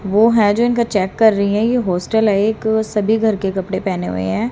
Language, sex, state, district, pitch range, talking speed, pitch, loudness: Hindi, female, Haryana, Charkhi Dadri, 195-220 Hz, 250 wpm, 215 Hz, -16 LUFS